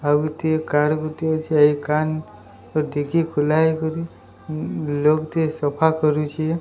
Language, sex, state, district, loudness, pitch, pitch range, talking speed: Odia, male, Odisha, Sambalpur, -21 LUFS, 155 Hz, 150-160 Hz, 125 wpm